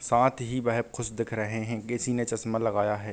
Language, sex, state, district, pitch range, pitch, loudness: Hindi, male, Bihar, East Champaran, 110-120 Hz, 115 Hz, -29 LUFS